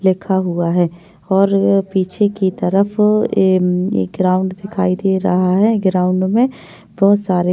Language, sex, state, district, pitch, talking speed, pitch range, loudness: Hindi, female, Maharashtra, Chandrapur, 190 Hz, 135 wpm, 180-195 Hz, -16 LUFS